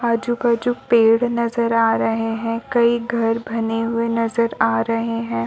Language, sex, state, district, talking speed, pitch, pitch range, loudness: Hindi, female, Chhattisgarh, Balrampur, 175 wpm, 230 Hz, 225-235 Hz, -19 LUFS